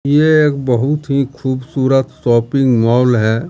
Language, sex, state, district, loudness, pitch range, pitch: Hindi, male, Bihar, Katihar, -14 LUFS, 120-140 Hz, 130 Hz